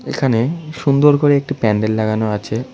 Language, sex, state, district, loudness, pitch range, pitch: Bengali, female, West Bengal, Cooch Behar, -16 LUFS, 110-145 Hz, 130 Hz